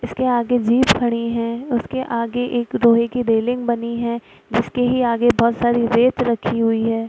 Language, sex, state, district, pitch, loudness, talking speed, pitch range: Hindi, female, Bihar, Araria, 235 Hz, -19 LUFS, 185 wpm, 230-245 Hz